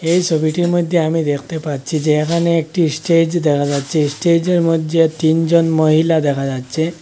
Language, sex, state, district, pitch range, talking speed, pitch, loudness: Bengali, male, Assam, Hailakandi, 150-170 Hz, 155 wpm, 160 Hz, -16 LUFS